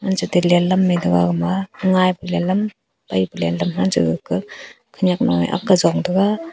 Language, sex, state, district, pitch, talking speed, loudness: Wancho, female, Arunachal Pradesh, Longding, 175 Hz, 165 wpm, -18 LUFS